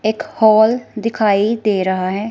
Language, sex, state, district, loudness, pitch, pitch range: Hindi, female, Himachal Pradesh, Shimla, -15 LUFS, 215 Hz, 205-225 Hz